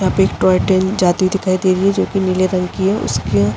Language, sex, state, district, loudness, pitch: Hindi, female, Uttar Pradesh, Jalaun, -15 LUFS, 185 Hz